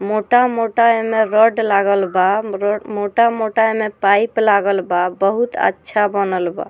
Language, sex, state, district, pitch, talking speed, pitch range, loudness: Bhojpuri, female, Bihar, Muzaffarpur, 210 Hz, 135 wpm, 200-225 Hz, -16 LUFS